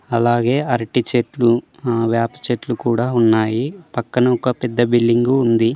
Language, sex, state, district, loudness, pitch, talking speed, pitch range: Telugu, male, Telangana, Mahabubabad, -18 LUFS, 120 Hz, 135 wpm, 115-125 Hz